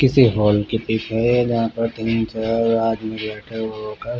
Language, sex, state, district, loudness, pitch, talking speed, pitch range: Hindi, male, Bihar, Patna, -20 LUFS, 115 Hz, 185 wpm, 110-115 Hz